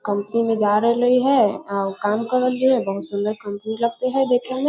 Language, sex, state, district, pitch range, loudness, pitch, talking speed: Maithili, female, Bihar, Muzaffarpur, 205-255 Hz, -20 LUFS, 230 Hz, 230 wpm